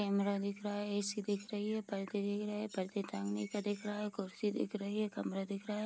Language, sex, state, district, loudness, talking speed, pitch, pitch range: Hindi, female, Bihar, Vaishali, -39 LUFS, 265 wpm, 205 Hz, 200-210 Hz